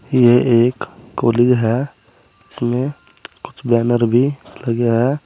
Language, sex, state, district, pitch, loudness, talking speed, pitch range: Hindi, male, Uttar Pradesh, Saharanpur, 120 Hz, -16 LUFS, 115 wpm, 115-125 Hz